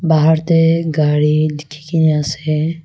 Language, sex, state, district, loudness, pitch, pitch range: Nagamese, female, Nagaland, Kohima, -15 LUFS, 155 Hz, 150-160 Hz